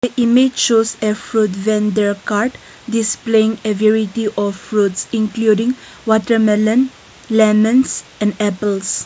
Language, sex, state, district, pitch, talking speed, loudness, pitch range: English, female, Nagaland, Kohima, 215 Hz, 105 wpm, -16 LUFS, 210-225 Hz